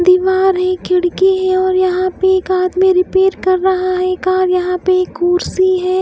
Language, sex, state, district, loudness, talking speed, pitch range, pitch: Hindi, female, Himachal Pradesh, Shimla, -14 LUFS, 190 wpm, 365-375 Hz, 370 Hz